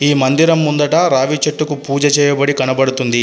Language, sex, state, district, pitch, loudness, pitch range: Telugu, male, Telangana, Adilabad, 145 Hz, -14 LUFS, 135-150 Hz